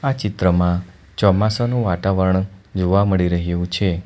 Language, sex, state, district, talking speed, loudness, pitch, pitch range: Gujarati, male, Gujarat, Valsad, 120 wpm, -19 LUFS, 95 Hz, 90-100 Hz